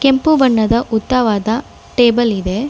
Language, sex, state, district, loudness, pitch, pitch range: Kannada, female, Karnataka, Bangalore, -14 LUFS, 240 Hz, 220-265 Hz